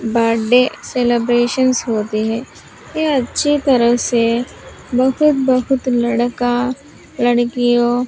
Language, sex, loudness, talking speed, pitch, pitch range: Hindi, female, -16 LUFS, 95 wpm, 245 Hz, 235-260 Hz